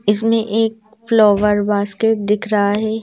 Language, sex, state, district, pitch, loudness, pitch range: Hindi, female, Madhya Pradesh, Bhopal, 215 Hz, -16 LUFS, 205-225 Hz